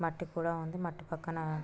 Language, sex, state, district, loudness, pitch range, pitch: Telugu, female, Andhra Pradesh, Srikakulam, -37 LUFS, 160-170 Hz, 165 Hz